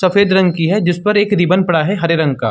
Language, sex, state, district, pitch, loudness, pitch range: Hindi, male, Uttar Pradesh, Muzaffarnagar, 185 Hz, -14 LUFS, 165-200 Hz